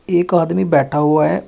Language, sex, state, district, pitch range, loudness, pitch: Hindi, male, Uttar Pradesh, Shamli, 150-175 Hz, -15 LUFS, 165 Hz